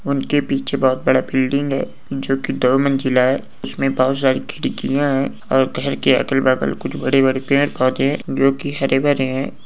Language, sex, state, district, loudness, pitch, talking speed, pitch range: Hindi, male, West Bengal, Malda, -18 LUFS, 135 Hz, 185 wpm, 130-140 Hz